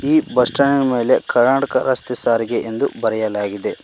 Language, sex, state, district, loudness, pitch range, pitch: Kannada, male, Karnataka, Koppal, -17 LUFS, 110-140 Hz, 125 Hz